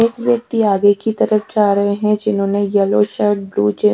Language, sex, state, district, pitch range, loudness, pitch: Hindi, female, Haryana, Charkhi Dadri, 200-215 Hz, -16 LUFS, 205 Hz